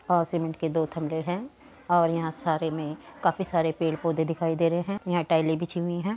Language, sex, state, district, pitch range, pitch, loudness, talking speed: Hindi, female, Uttar Pradesh, Muzaffarnagar, 160-175 Hz, 165 Hz, -27 LUFS, 215 wpm